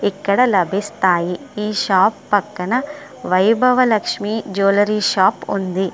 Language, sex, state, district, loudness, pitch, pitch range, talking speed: Telugu, female, Andhra Pradesh, Srikakulam, -17 LUFS, 205 Hz, 190-230 Hz, 100 wpm